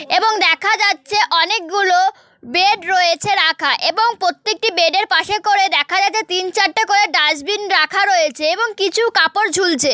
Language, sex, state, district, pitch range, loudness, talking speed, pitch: Bengali, female, West Bengal, Malda, 345-420 Hz, -15 LUFS, 150 wpm, 390 Hz